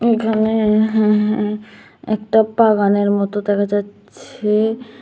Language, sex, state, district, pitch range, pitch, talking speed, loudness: Bengali, female, Tripura, West Tripura, 205-220 Hz, 215 Hz, 95 wpm, -17 LUFS